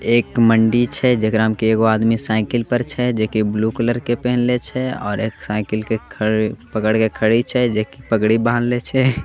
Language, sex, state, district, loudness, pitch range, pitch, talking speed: Angika, male, Bihar, Begusarai, -18 LUFS, 110-120 Hz, 115 Hz, 195 wpm